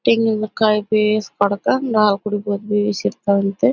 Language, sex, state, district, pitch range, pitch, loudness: Kannada, female, Karnataka, Bellary, 205-215 Hz, 210 Hz, -18 LUFS